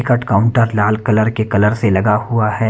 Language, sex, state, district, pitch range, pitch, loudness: Hindi, male, Punjab, Kapurthala, 105-115 Hz, 110 Hz, -15 LUFS